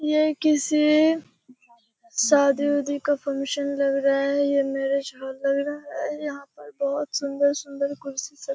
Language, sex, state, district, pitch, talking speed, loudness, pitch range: Hindi, female, Bihar, Kishanganj, 280 Hz, 155 wpm, -24 LUFS, 275-290 Hz